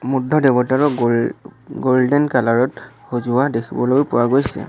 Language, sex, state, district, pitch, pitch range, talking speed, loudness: Assamese, male, Assam, Sonitpur, 130 Hz, 120-135 Hz, 130 wpm, -17 LUFS